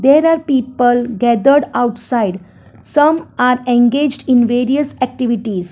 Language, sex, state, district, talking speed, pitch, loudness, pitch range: English, female, Gujarat, Valsad, 115 wpm, 250 Hz, -14 LUFS, 240-280 Hz